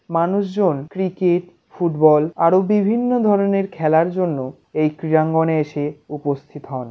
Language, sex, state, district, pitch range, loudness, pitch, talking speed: Bengali, male, West Bengal, Jalpaiguri, 150-190 Hz, -19 LUFS, 165 Hz, 120 wpm